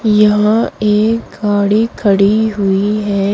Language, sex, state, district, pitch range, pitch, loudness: Hindi, female, Uttar Pradesh, Shamli, 200-215 Hz, 210 Hz, -13 LUFS